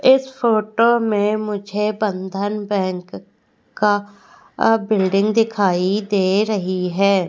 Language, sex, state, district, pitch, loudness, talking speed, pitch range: Hindi, female, Madhya Pradesh, Katni, 210 Hz, -19 LUFS, 100 wpm, 195-215 Hz